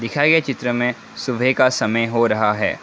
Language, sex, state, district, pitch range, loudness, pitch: Hindi, male, Assam, Kamrup Metropolitan, 115-130 Hz, -18 LUFS, 120 Hz